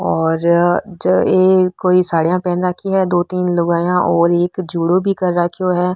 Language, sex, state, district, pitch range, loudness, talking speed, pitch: Marwari, female, Rajasthan, Nagaur, 170-185 Hz, -15 LUFS, 170 wpm, 180 Hz